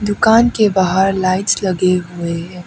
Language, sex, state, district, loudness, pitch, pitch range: Hindi, female, Arunachal Pradesh, Papum Pare, -15 LUFS, 190 Hz, 180-205 Hz